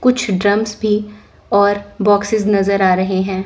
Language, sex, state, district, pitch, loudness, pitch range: Hindi, female, Chandigarh, Chandigarh, 205 Hz, -15 LUFS, 195-210 Hz